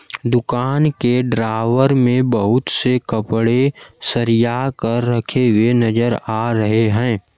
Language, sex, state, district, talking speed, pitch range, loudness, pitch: Hindi, male, Bihar, Kaimur, 120 wpm, 115-125 Hz, -17 LUFS, 120 Hz